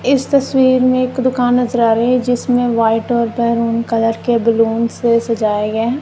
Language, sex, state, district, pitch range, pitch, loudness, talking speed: Hindi, male, Punjab, Kapurthala, 230-250 Hz, 235 Hz, -15 LUFS, 200 wpm